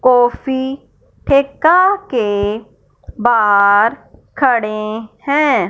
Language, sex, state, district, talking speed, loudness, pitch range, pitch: Hindi, male, Punjab, Fazilka, 65 wpm, -14 LUFS, 215-280 Hz, 245 Hz